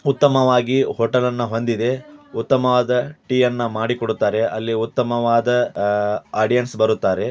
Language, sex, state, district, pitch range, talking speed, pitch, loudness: Kannada, male, Karnataka, Dharwad, 115-125 Hz, 90 wpm, 120 Hz, -19 LUFS